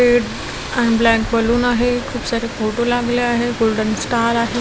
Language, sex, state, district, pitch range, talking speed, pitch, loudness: Marathi, female, Maharashtra, Washim, 230-240 Hz, 170 wpm, 235 Hz, -17 LUFS